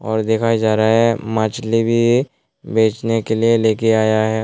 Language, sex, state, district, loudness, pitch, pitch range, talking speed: Hindi, male, Tripura, West Tripura, -16 LUFS, 110 Hz, 110-115 Hz, 175 wpm